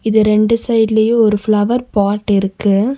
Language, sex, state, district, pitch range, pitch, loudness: Tamil, female, Tamil Nadu, Nilgiris, 205-225 Hz, 215 Hz, -14 LUFS